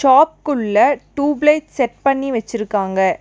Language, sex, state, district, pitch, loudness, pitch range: Tamil, female, Tamil Nadu, Nilgiris, 270 Hz, -17 LUFS, 220-290 Hz